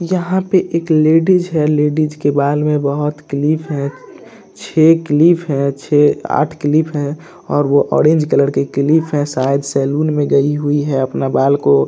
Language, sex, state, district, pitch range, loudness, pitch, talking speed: Hindi, male, Andhra Pradesh, Chittoor, 140-160 Hz, -15 LUFS, 150 Hz, 170 wpm